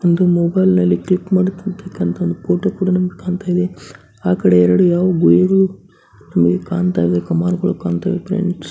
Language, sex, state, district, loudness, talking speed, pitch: Kannada, male, Karnataka, Bijapur, -16 LUFS, 130 wpm, 175 Hz